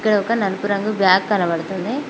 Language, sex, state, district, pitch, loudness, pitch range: Telugu, female, Telangana, Mahabubabad, 205 Hz, -19 LUFS, 190-215 Hz